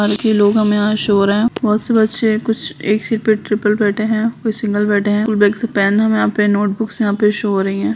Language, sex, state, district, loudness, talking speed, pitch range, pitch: Hindi, female, Bihar, Bhagalpur, -15 LUFS, 270 wpm, 205-220 Hz, 210 Hz